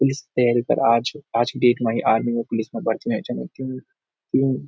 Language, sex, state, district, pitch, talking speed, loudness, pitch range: Garhwali, male, Uttarakhand, Uttarkashi, 120 Hz, 245 wpm, -22 LUFS, 115-130 Hz